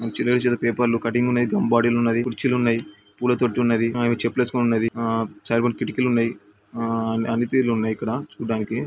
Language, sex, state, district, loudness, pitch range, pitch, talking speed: Telugu, male, Andhra Pradesh, Srikakulam, -22 LUFS, 115-120 Hz, 115 Hz, 185 wpm